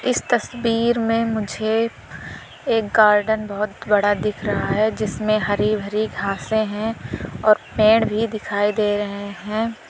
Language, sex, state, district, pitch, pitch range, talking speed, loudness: Hindi, female, Uttar Pradesh, Lalitpur, 215 Hz, 205-220 Hz, 140 wpm, -20 LUFS